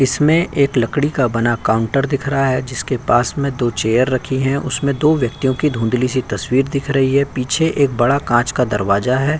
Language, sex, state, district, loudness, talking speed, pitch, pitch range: Hindi, male, Uttar Pradesh, Jyotiba Phule Nagar, -17 LUFS, 205 wpm, 130 Hz, 120-140 Hz